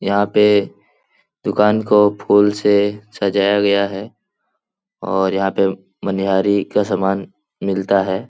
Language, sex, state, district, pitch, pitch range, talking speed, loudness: Hindi, male, Bihar, Jahanabad, 100 Hz, 95-105 Hz, 125 wpm, -17 LUFS